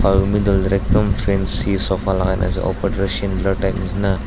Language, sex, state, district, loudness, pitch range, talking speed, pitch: Nagamese, male, Nagaland, Dimapur, -17 LUFS, 95-100 Hz, 225 wpm, 95 Hz